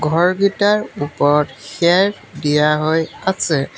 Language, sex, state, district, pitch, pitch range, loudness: Assamese, male, Assam, Sonitpur, 160 Hz, 150-190 Hz, -17 LUFS